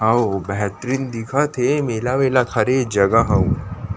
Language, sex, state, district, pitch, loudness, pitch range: Chhattisgarhi, male, Chhattisgarh, Rajnandgaon, 115 Hz, -19 LUFS, 105-130 Hz